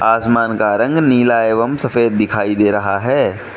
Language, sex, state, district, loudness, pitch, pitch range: Hindi, male, Manipur, Imphal West, -14 LUFS, 115 Hz, 105-120 Hz